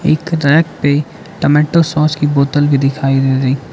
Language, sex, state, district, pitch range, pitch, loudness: Hindi, male, Arunachal Pradesh, Lower Dibang Valley, 140-160 Hz, 145 Hz, -13 LUFS